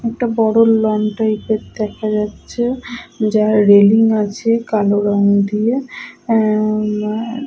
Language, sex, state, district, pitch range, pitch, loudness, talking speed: Bengali, female, West Bengal, Purulia, 210-230 Hz, 215 Hz, -15 LUFS, 120 wpm